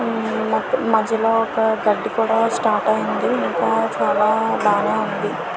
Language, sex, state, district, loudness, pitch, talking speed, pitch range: Telugu, female, Andhra Pradesh, Visakhapatnam, -19 LUFS, 220 Hz, 110 wpm, 210-225 Hz